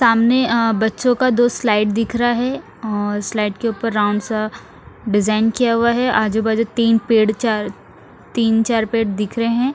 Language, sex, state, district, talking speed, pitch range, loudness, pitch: Hindi, female, Punjab, Fazilka, 180 wpm, 215-235 Hz, -17 LUFS, 225 Hz